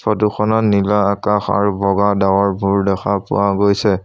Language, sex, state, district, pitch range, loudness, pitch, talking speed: Assamese, male, Assam, Sonitpur, 100-105 Hz, -16 LUFS, 100 Hz, 150 wpm